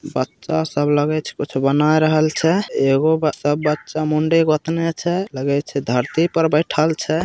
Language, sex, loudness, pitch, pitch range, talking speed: Bhojpuri, male, -18 LUFS, 155 Hz, 145-160 Hz, 165 wpm